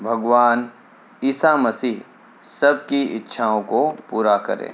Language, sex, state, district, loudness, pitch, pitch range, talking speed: Hindi, male, Uttar Pradesh, Hamirpur, -19 LUFS, 120 Hz, 120-140 Hz, 100 wpm